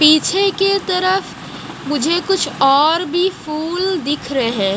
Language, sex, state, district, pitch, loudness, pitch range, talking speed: Hindi, female, Odisha, Malkangiri, 330 Hz, -16 LUFS, 290-375 Hz, 125 wpm